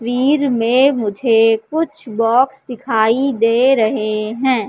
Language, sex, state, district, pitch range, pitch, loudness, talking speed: Hindi, female, Madhya Pradesh, Katni, 225-265 Hz, 240 Hz, -15 LUFS, 115 wpm